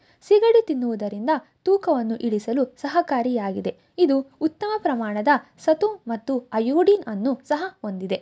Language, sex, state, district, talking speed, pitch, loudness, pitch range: Kannada, female, Karnataka, Shimoga, 100 wpm, 275 Hz, -23 LUFS, 230-345 Hz